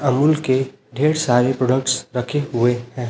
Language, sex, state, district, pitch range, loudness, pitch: Hindi, male, Chhattisgarh, Raipur, 125-135 Hz, -19 LUFS, 130 Hz